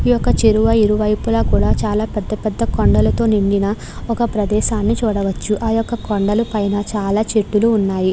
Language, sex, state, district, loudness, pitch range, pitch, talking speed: Telugu, female, Andhra Pradesh, Krishna, -17 LUFS, 200-220 Hz, 210 Hz, 150 wpm